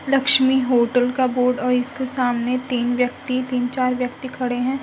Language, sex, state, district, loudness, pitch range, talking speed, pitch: Hindi, female, Uttar Pradesh, Budaun, -20 LUFS, 250-260 Hz, 175 wpm, 250 Hz